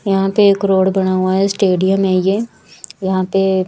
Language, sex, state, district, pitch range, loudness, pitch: Hindi, female, Chhattisgarh, Raipur, 190-195 Hz, -15 LUFS, 195 Hz